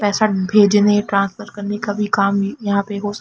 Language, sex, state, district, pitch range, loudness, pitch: Hindi, female, Uttar Pradesh, Jalaun, 200-205 Hz, -17 LUFS, 205 Hz